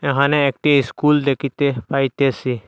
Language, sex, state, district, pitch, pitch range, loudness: Bengali, male, Assam, Hailakandi, 140 Hz, 135-145 Hz, -18 LUFS